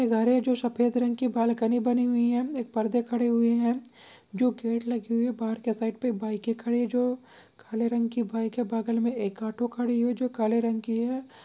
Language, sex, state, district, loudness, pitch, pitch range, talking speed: Hindi, male, Chhattisgarh, Korba, -27 LUFS, 235 Hz, 230-245 Hz, 230 wpm